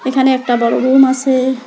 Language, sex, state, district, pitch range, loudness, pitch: Bengali, female, West Bengal, Alipurduar, 255-265 Hz, -12 LUFS, 260 Hz